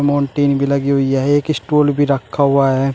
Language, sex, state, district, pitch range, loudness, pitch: Hindi, male, Uttar Pradesh, Shamli, 135-145 Hz, -15 LUFS, 140 Hz